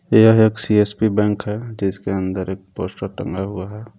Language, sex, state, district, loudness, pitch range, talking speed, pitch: Hindi, male, Jharkhand, Garhwa, -19 LUFS, 95-110 Hz, 180 wpm, 105 Hz